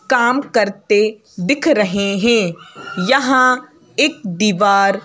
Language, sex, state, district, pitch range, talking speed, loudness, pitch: Hindi, female, Madhya Pradesh, Bhopal, 200-255 Hz, 95 wpm, -15 LUFS, 215 Hz